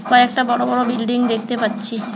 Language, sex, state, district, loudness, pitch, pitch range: Bengali, male, West Bengal, Alipurduar, -18 LUFS, 240 Hz, 225-245 Hz